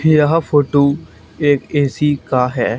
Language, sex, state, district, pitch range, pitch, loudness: Hindi, male, Haryana, Charkhi Dadri, 140-150 Hz, 145 Hz, -15 LUFS